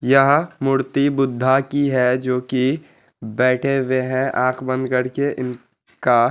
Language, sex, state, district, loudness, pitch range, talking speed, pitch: Hindi, male, Bihar, Araria, -19 LUFS, 125-135 Hz, 140 wpm, 130 Hz